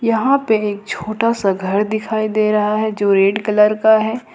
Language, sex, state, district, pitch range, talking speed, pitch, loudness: Hindi, female, Jharkhand, Ranchi, 210-220 Hz, 205 wpm, 215 Hz, -16 LUFS